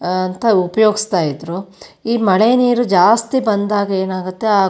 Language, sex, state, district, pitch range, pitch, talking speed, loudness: Kannada, female, Karnataka, Shimoga, 185-225 Hz, 200 Hz, 130 wpm, -15 LUFS